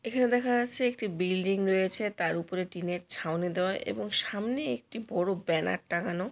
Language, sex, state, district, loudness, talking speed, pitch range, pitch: Bengali, female, West Bengal, Jalpaiguri, -30 LUFS, 170 wpm, 175-230 Hz, 190 Hz